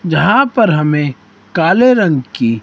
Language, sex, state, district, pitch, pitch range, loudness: Hindi, male, Himachal Pradesh, Shimla, 160 Hz, 145-220 Hz, -12 LUFS